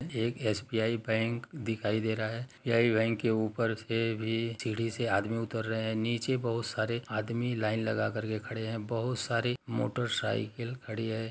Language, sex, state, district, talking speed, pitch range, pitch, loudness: Hindi, male, Bihar, Darbhanga, 185 wpm, 110-115 Hz, 115 Hz, -32 LUFS